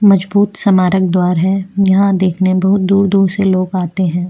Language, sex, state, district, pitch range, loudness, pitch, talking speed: Hindi, female, Uttarakhand, Tehri Garhwal, 185-195 Hz, -13 LUFS, 190 Hz, 165 wpm